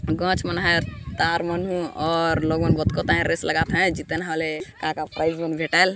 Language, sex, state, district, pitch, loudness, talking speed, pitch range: Sadri, female, Chhattisgarh, Jashpur, 160 Hz, -23 LUFS, 160 wpm, 155-165 Hz